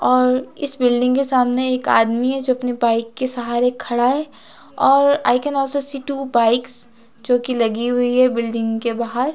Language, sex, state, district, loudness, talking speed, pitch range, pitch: Hindi, female, Himachal Pradesh, Shimla, -18 LUFS, 190 wpm, 235-265 Hz, 250 Hz